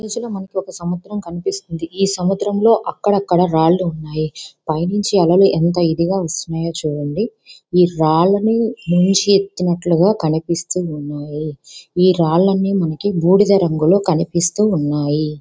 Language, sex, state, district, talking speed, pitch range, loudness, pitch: Telugu, female, Andhra Pradesh, Visakhapatnam, 120 wpm, 160-195 Hz, -17 LUFS, 175 Hz